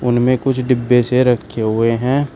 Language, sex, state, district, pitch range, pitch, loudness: Hindi, male, Uttar Pradesh, Shamli, 120-130 Hz, 125 Hz, -16 LUFS